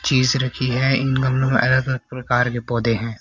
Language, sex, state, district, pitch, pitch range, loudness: Hindi, female, Haryana, Rohtak, 130 Hz, 120-130 Hz, -19 LUFS